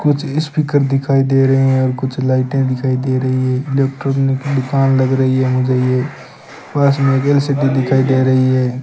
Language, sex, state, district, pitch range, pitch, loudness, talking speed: Hindi, male, Rajasthan, Bikaner, 130-140 Hz, 135 Hz, -15 LUFS, 175 wpm